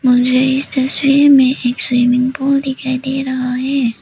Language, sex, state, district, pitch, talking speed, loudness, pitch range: Hindi, female, Arunachal Pradesh, Papum Pare, 260 Hz, 165 wpm, -14 LUFS, 250-270 Hz